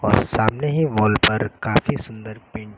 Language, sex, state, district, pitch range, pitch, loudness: Hindi, male, Uttar Pradesh, Lucknow, 105-115 Hz, 110 Hz, -19 LUFS